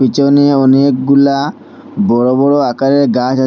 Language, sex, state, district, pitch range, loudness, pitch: Bengali, male, Assam, Hailakandi, 130-140 Hz, -11 LUFS, 140 Hz